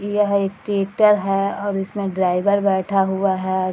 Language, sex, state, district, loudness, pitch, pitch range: Hindi, female, Bihar, Madhepura, -19 LUFS, 195 Hz, 190-200 Hz